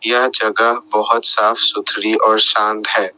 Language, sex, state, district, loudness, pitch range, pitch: Hindi, male, Assam, Sonitpur, -13 LUFS, 110-115 Hz, 110 Hz